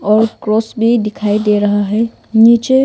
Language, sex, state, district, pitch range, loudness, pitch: Hindi, female, Arunachal Pradesh, Longding, 210-230 Hz, -13 LUFS, 220 Hz